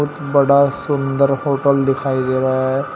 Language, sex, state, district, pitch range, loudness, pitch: Hindi, male, Uttar Pradesh, Shamli, 135-140 Hz, -16 LUFS, 140 Hz